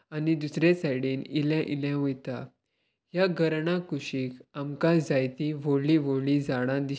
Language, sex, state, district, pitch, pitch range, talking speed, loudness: Konkani, male, Goa, North and South Goa, 145 Hz, 135-160 Hz, 135 wpm, -28 LUFS